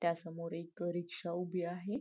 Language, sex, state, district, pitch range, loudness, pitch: Marathi, female, Maharashtra, Nagpur, 170-175 Hz, -40 LUFS, 175 Hz